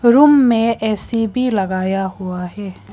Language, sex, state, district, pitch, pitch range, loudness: Hindi, female, Arunachal Pradesh, Papum Pare, 220 Hz, 190-235 Hz, -16 LUFS